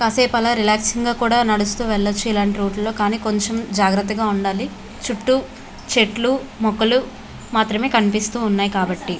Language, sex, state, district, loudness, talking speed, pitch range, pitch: Telugu, female, Andhra Pradesh, Visakhapatnam, -19 LUFS, 135 wpm, 205-235 Hz, 220 Hz